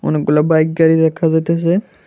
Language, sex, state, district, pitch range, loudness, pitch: Bengali, male, Tripura, West Tripura, 155-165 Hz, -14 LUFS, 160 Hz